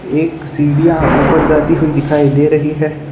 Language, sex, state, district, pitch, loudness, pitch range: Hindi, male, Gujarat, Valsad, 150 Hz, -12 LUFS, 145-155 Hz